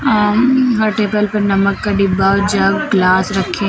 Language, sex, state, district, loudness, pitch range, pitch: Hindi, female, Uttar Pradesh, Lucknow, -14 LUFS, 195-210 Hz, 205 Hz